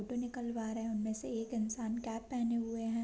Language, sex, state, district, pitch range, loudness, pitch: Hindi, female, Bihar, Sitamarhi, 225-235 Hz, -38 LUFS, 230 Hz